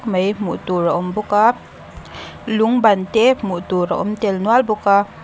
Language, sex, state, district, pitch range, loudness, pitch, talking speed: Mizo, female, Mizoram, Aizawl, 185-220 Hz, -17 LUFS, 205 Hz, 195 wpm